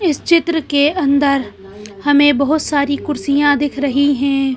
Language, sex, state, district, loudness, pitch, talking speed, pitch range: Hindi, female, Madhya Pradesh, Bhopal, -15 LUFS, 285 Hz, 145 wpm, 275-295 Hz